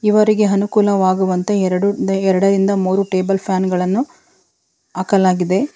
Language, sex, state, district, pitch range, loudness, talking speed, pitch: Kannada, female, Karnataka, Bangalore, 185-205 Hz, -16 LUFS, 95 wpm, 195 Hz